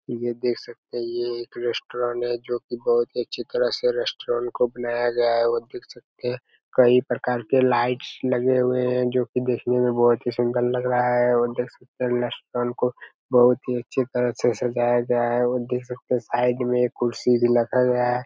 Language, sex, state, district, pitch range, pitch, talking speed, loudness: Hindi, male, Chhattisgarh, Raigarh, 120-125 Hz, 125 Hz, 220 wpm, -23 LUFS